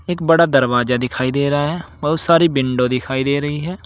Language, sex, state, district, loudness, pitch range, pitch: Hindi, male, Uttar Pradesh, Saharanpur, -17 LUFS, 130-165 Hz, 140 Hz